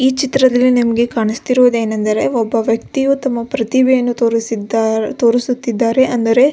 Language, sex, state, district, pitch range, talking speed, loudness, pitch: Kannada, female, Karnataka, Belgaum, 230-260 Hz, 110 wpm, -15 LUFS, 240 Hz